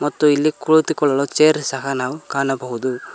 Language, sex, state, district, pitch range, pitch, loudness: Kannada, male, Karnataka, Koppal, 135-155 Hz, 145 Hz, -18 LUFS